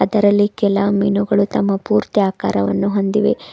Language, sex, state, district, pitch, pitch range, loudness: Kannada, female, Karnataka, Bidar, 200 Hz, 195-205 Hz, -17 LUFS